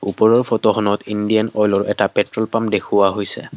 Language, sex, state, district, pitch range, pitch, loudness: Assamese, male, Assam, Kamrup Metropolitan, 105-110 Hz, 105 Hz, -17 LUFS